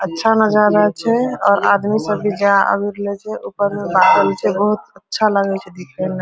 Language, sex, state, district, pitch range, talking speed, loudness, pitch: Hindi, female, Bihar, Araria, 195-210 Hz, 210 wpm, -16 LUFS, 205 Hz